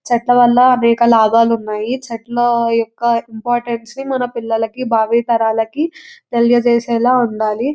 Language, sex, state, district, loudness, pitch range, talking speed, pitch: Telugu, female, Telangana, Nalgonda, -15 LUFS, 230-245 Hz, 110 wpm, 235 Hz